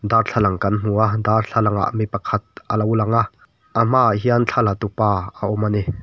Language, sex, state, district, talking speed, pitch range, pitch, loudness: Mizo, male, Mizoram, Aizawl, 210 wpm, 105-115 Hz, 110 Hz, -19 LUFS